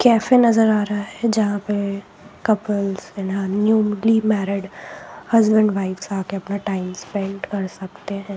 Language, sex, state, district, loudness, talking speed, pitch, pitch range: Hindi, female, Jharkhand, Sahebganj, -20 LUFS, 145 wpm, 205 Hz, 195-215 Hz